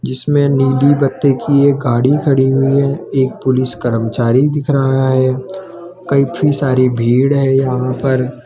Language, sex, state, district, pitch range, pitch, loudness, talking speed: Hindi, male, Rajasthan, Jaipur, 130-140 Hz, 135 Hz, -14 LUFS, 150 wpm